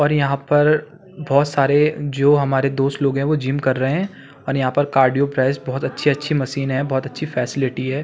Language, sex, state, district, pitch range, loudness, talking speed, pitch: Hindi, male, Uttarakhand, Tehri Garhwal, 135-145 Hz, -19 LUFS, 210 wpm, 140 Hz